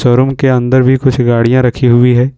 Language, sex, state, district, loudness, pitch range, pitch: Hindi, male, Jharkhand, Ranchi, -10 LUFS, 120-130 Hz, 125 Hz